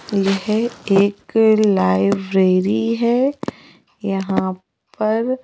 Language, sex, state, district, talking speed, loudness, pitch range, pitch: Hindi, female, Madhya Pradesh, Bhopal, 65 wpm, -18 LUFS, 195-230 Hz, 210 Hz